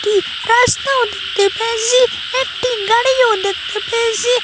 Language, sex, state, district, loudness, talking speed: Bengali, female, Assam, Hailakandi, -15 LUFS, 95 wpm